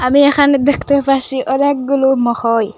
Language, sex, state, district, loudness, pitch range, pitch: Bengali, female, Assam, Hailakandi, -13 LUFS, 250-280 Hz, 270 Hz